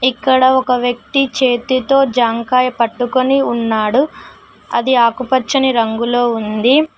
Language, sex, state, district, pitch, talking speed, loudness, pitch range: Telugu, female, Telangana, Mahabubabad, 255 Hz, 95 wpm, -14 LUFS, 235-265 Hz